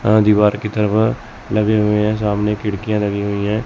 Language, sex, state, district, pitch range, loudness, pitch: Hindi, male, Chandigarh, Chandigarh, 105-110 Hz, -17 LUFS, 105 Hz